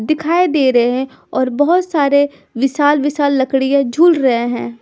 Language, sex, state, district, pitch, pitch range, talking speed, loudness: Hindi, female, Punjab, Pathankot, 280 Hz, 260-300 Hz, 150 wpm, -14 LUFS